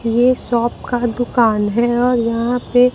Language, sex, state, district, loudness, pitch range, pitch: Hindi, female, Bihar, Katihar, -16 LUFS, 230-245 Hz, 240 Hz